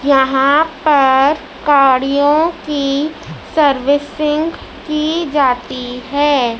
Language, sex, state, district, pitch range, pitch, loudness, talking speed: Hindi, female, Madhya Pradesh, Dhar, 270-305 Hz, 285 Hz, -14 LUFS, 75 wpm